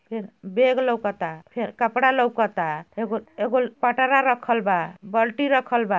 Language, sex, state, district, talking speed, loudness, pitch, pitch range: Bhojpuri, female, Uttar Pradesh, Ghazipur, 130 wpm, -22 LUFS, 230 Hz, 205-250 Hz